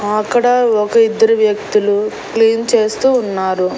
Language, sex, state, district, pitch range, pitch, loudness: Telugu, female, Andhra Pradesh, Annamaya, 210-230 Hz, 220 Hz, -14 LUFS